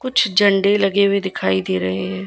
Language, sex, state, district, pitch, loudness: Hindi, female, Gujarat, Gandhinagar, 195 Hz, -17 LUFS